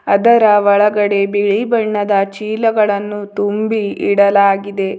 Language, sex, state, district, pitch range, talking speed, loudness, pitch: Kannada, female, Karnataka, Bidar, 200-215 Hz, 85 wpm, -14 LUFS, 205 Hz